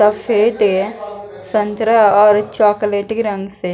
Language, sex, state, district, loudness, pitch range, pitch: Bhojpuri, female, Bihar, East Champaran, -14 LUFS, 205-215 Hz, 210 Hz